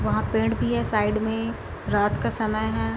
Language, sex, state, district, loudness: Hindi, female, Bihar, Gopalganj, -25 LUFS